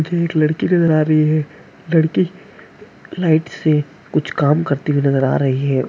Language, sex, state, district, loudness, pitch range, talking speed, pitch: Hindi, male, Bihar, Jamui, -17 LUFS, 145-165 Hz, 175 wpm, 155 Hz